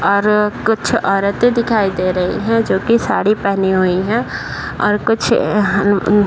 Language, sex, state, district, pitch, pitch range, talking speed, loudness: Hindi, female, Uttar Pradesh, Deoria, 205 Hz, 195-225 Hz, 155 wpm, -15 LUFS